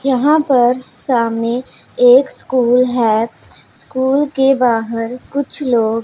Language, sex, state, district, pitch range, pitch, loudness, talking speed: Hindi, female, Punjab, Pathankot, 230-265 Hz, 250 Hz, -15 LUFS, 110 wpm